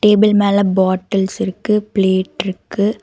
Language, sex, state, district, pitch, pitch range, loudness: Tamil, female, Karnataka, Bangalore, 200 Hz, 190-210 Hz, -16 LUFS